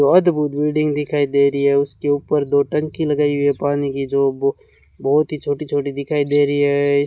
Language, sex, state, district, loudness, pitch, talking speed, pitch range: Hindi, male, Rajasthan, Bikaner, -18 LUFS, 145 Hz, 220 wpm, 140-150 Hz